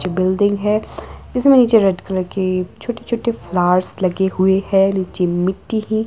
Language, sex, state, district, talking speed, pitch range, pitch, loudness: Hindi, female, Himachal Pradesh, Shimla, 170 wpm, 185-220 Hz, 190 Hz, -17 LUFS